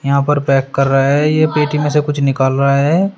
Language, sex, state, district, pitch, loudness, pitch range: Hindi, male, Uttar Pradesh, Shamli, 140 Hz, -14 LUFS, 135-150 Hz